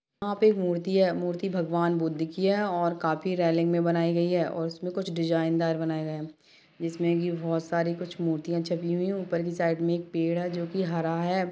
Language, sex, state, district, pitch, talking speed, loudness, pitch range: Hindi, female, Chhattisgarh, Kabirdham, 170 Hz, 210 wpm, -28 LUFS, 165-180 Hz